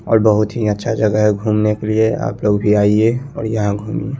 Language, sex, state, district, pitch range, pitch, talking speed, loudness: Hindi, male, Chandigarh, Chandigarh, 105-115 Hz, 110 Hz, 245 wpm, -16 LUFS